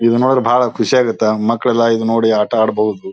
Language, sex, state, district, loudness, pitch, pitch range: Kannada, male, Karnataka, Bijapur, -14 LUFS, 115 Hz, 110-120 Hz